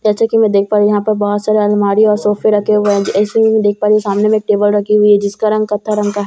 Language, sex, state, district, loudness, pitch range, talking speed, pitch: Hindi, female, Bihar, Katihar, -12 LUFS, 205-215 Hz, 325 wpm, 210 Hz